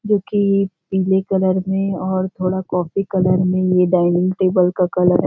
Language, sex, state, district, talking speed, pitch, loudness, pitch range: Hindi, female, Chhattisgarh, Rajnandgaon, 195 wpm, 185 Hz, -18 LUFS, 180-190 Hz